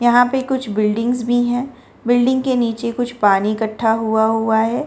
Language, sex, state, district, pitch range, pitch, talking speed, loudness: Hindi, female, Delhi, New Delhi, 220-245 Hz, 240 Hz, 185 wpm, -17 LUFS